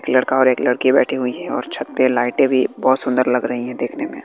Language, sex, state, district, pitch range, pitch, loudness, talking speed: Hindi, male, Bihar, West Champaran, 125-130 Hz, 130 Hz, -18 LUFS, 280 wpm